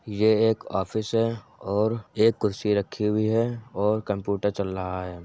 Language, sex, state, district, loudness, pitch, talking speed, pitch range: Hindi, male, Uttar Pradesh, Jyotiba Phule Nagar, -25 LUFS, 105 Hz, 170 wpm, 100-110 Hz